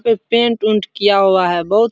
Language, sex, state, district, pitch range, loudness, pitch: Hindi, male, Bihar, Supaul, 195-230 Hz, -14 LUFS, 210 Hz